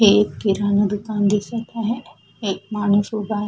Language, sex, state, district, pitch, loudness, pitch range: Marathi, female, Maharashtra, Sindhudurg, 205 Hz, -21 LUFS, 205-220 Hz